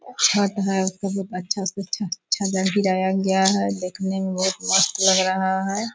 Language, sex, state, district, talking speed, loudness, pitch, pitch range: Hindi, female, Bihar, Purnia, 180 wpm, -21 LUFS, 190 Hz, 190-195 Hz